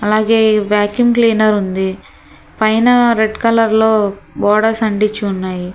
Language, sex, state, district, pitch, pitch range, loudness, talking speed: Telugu, female, Telangana, Hyderabad, 215 Hz, 205-225 Hz, -13 LUFS, 115 wpm